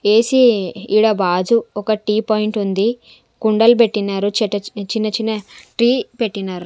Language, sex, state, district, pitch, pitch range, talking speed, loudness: Telugu, female, Andhra Pradesh, Sri Satya Sai, 215 Hz, 205-230 Hz, 125 wpm, -17 LUFS